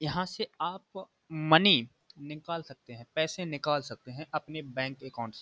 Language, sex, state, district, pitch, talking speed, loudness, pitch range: Hindi, male, Uttar Pradesh, Budaun, 155 Hz, 175 wpm, -30 LUFS, 130-170 Hz